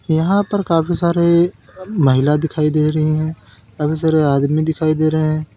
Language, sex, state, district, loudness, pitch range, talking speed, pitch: Hindi, male, Uttar Pradesh, Lalitpur, -16 LUFS, 150-170 Hz, 170 wpm, 155 Hz